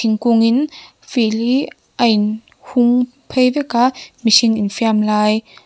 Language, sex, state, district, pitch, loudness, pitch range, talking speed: Mizo, female, Mizoram, Aizawl, 235 Hz, -16 LUFS, 220-250 Hz, 140 wpm